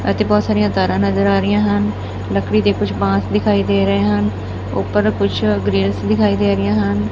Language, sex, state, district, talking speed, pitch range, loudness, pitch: Punjabi, female, Punjab, Fazilka, 195 wpm, 100-105 Hz, -16 LUFS, 100 Hz